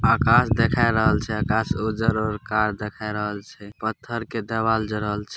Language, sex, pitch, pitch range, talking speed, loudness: Angika, male, 110 Hz, 105-115 Hz, 180 wpm, -23 LUFS